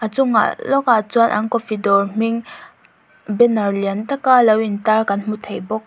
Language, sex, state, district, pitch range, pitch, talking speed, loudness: Mizo, female, Mizoram, Aizawl, 210-235 Hz, 220 Hz, 195 wpm, -17 LUFS